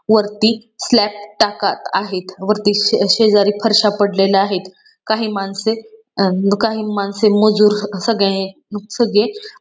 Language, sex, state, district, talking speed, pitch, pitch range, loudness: Marathi, female, Maharashtra, Pune, 110 wpm, 210 Hz, 200-220 Hz, -16 LUFS